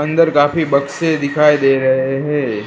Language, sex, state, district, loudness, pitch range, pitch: Hindi, male, Gujarat, Gandhinagar, -14 LUFS, 135-150 Hz, 145 Hz